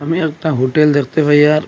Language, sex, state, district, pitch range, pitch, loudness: Bengali, male, Assam, Hailakandi, 145-155 Hz, 150 Hz, -14 LUFS